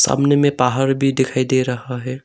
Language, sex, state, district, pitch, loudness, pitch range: Hindi, male, Arunachal Pradesh, Longding, 130 Hz, -17 LUFS, 125-135 Hz